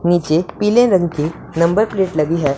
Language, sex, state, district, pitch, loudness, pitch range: Hindi, female, Punjab, Pathankot, 170 Hz, -16 LUFS, 160-195 Hz